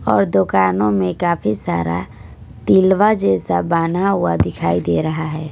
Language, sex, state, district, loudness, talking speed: Hindi, female, Punjab, Kapurthala, -17 LUFS, 140 wpm